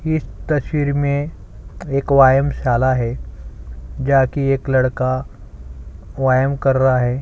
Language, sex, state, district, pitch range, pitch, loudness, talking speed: Hindi, male, Chhattisgarh, Sukma, 95-140 Hz, 130 Hz, -17 LUFS, 110 wpm